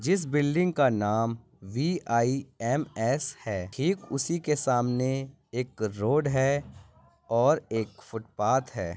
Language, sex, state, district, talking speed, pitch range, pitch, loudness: Hindi, male, Andhra Pradesh, Visakhapatnam, 115 wpm, 115-145 Hz, 130 Hz, -28 LUFS